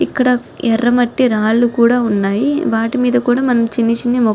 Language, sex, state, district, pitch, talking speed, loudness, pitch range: Telugu, female, Telangana, Nalgonda, 240 Hz, 165 wpm, -14 LUFS, 230-245 Hz